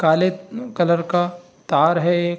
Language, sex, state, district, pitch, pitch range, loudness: Hindi, male, Bihar, Saharsa, 175 Hz, 170-185 Hz, -19 LUFS